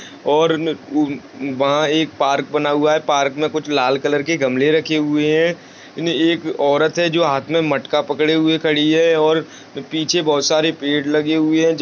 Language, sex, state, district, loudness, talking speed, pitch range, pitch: Hindi, male, Goa, North and South Goa, -17 LUFS, 210 wpm, 145-160 Hz, 155 Hz